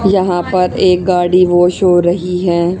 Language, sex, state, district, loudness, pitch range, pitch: Hindi, female, Haryana, Charkhi Dadri, -12 LUFS, 175-185 Hz, 180 Hz